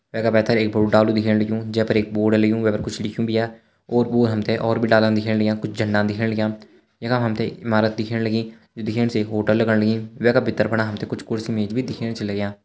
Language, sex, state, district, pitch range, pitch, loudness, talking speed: Hindi, male, Uttarakhand, Uttarkashi, 110-115 Hz, 110 Hz, -21 LUFS, 235 wpm